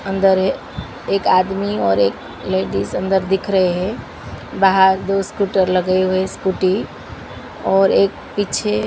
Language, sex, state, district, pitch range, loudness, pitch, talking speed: Hindi, female, Maharashtra, Mumbai Suburban, 185-195 Hz, -17 LUFS, 190 Hz, 135 wpm